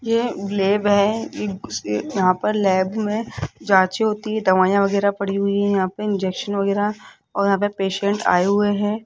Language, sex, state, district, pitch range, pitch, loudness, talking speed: Hindi, female, Rajasthan, Jaipur, 195-210 Hz, 200 Hz, -20 LUFS, 185 wpm